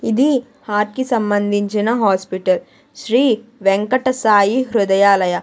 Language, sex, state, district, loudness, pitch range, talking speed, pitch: Telugu, female, Andhra Pradesh, Sri Satya Sai, -16 LUFS, 200-250 Hz, 100 wpm, 210 Hz